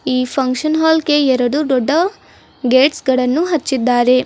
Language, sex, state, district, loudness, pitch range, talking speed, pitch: Kannada, female, Karnataka, Bidar, -15 LUFS, 255-310 Hz, 100 wpm, 265 Hz